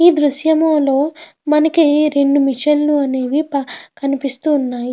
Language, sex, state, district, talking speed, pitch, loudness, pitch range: Telugu, female, Andhra Pradesh, Krishna, 110 wpm, 290 Hz, -15 LUFS, 275-310 Hz